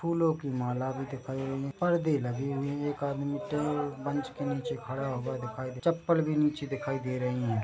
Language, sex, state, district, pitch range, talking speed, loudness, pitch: Hindi, male, Chhattisgarh, Bilaspur, 130-150 Hz, 230 wpm, -32 LUFS, 140 Hz